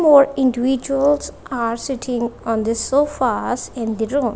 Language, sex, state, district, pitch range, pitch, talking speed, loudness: English, female, Punjab, Kapurthala, 230-275 Hz, 255 Hz, 140 wpm, -19 LUFS